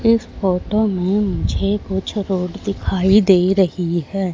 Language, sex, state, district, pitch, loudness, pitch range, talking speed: Hindi, female, Madhya Pradesh, Katni, 190 Hz, -18 LUFS, 185-205 Hz, 140 wpm